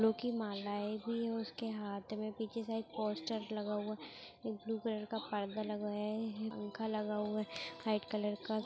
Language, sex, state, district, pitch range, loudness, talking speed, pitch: Hindi, female, Bihar, Madhepura, 210-225 Hz, -40 LUFS, 195 wpm, 215 Hz